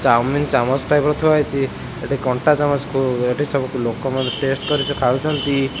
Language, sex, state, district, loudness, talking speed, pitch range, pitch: Odia, male, Odisha, Khordha, -19 LUFS, 165 wpm, 130-145 Hz, 135 Hz